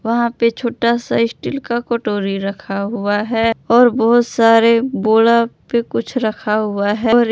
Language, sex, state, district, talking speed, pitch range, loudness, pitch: Hindi, female, Jharkhand, Palamu, 170 wpm, 215-235 Hz, -16 LUFS, 230 Hz